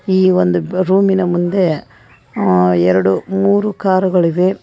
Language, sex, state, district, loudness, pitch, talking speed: Kannada, female, Karnataka, Koppal, -14 LUFS, 185 Hz, 105 wpm